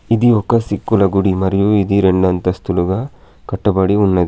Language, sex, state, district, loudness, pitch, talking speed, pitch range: Telugu, male, Telangana, Adilabad, -15 LUFS, 100 Hz, 140 wpm, 95-105 Hz